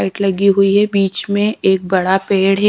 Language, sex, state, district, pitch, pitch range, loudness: Hindi, female, Bihar, Patna, 195 Hz, 190-200 Hz, -14 LUFS